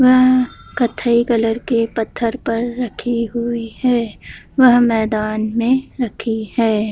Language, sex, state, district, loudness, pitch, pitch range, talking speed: Hindi, female, Bihar, Madhepura, -17 LUFS, 235 Hz, 225-245 Hz, 120 wpm